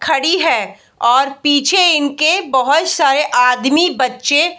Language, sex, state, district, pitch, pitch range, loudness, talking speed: Hindi, female, Bihar, Bhagalpur, 290 Hz, 260-335 Hz, -13 LUFS, 130 wpm